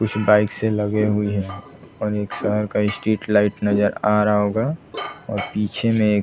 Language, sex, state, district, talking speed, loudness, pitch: Hindi, male, Bihar, Saran, 195 wpm, -20 LUFS, 105 Hz